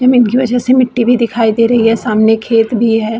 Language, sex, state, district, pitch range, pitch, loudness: Hindi, female, Bihar, Vaishali, 225-245 Hz, 230 Hz, -11 LUFS